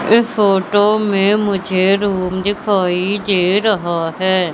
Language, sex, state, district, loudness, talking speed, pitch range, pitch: Hindi, female, Madhya Pradesh, Katni, -15 LUFS, 120 wpm, 185-205 Hz, 195 Hz